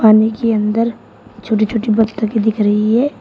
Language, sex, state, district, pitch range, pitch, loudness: Hindi, female, Uttar Pradesh, Shamli, 215-225 Hz, 220 Hz, -15 LUFS